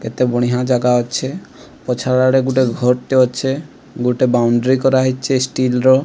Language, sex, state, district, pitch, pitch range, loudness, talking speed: Odia, male, Odisha, Sambalpur, 130 Hz, 125-130 Hz, -16 LUFS, 140 wpm